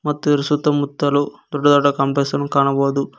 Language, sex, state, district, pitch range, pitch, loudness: Kannada, male, Karnataka, Koppal, 140-145 Hz, 145 Hz, -18 LUFS